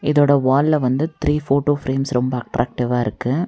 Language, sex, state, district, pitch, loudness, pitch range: Tamil, female, Tamil Nadu, Nilgiris, 135 Hz, -19 LUFS, 125-145 Hz